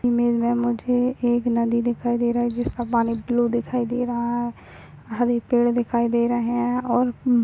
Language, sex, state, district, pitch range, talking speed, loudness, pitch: Hindi, female, Maharashtra, Aurangabad, 235-240 Hz, 185 wpm, -22 LUFS, 240 Hz